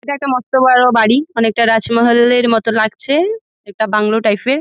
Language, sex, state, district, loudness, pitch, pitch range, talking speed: Bengali, female, West Bengal, Jalpaiguri, -13 LUFS, 235 Hz, 225-260 Hz, 170 wpm